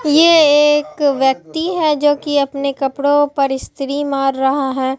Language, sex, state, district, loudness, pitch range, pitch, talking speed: Hindi, female, Bihar, Katihar, -15 LUFS, 275-295 Hz, 285 Hz, 155 wpm